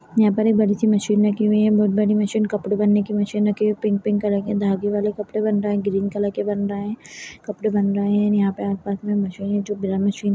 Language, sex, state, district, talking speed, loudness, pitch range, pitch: Kumaoni, female, Uttarakhand, Uttarkashi, 280 wpm, -21 LUFS, 200-210 Hz, 205 Hz